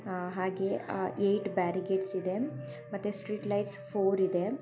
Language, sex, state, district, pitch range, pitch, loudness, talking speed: Kannada, female, Karnataka, Chamarajanagar, 185-200 Hz, 195 Hz, -32 LUFS, 145 wpm